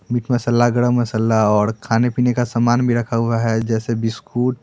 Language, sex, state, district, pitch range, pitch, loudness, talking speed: Hindi, male, Bihar, Muzaffarpur, 115-120 Hz, 120 Hz, -18 LUFS, 205 wpm